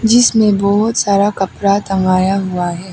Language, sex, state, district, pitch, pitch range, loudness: Hindi, female, Arunachal Pradesh, Papum Pare, 200 Hz, 185-210 Hz, -14 LUFS